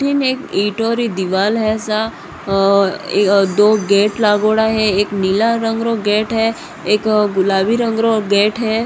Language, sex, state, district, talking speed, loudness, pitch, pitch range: Rajasthani, female, Rajasthan, Nagaur, 160 wpm, -15 LUFS, 215 Hz, 200-225 Hz